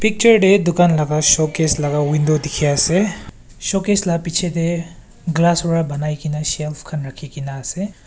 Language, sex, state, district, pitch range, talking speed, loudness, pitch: Nagamese, male, Nagaland, Kohima, 150-175 Hz, 165 wpm, -17 LUFS, 160 Hz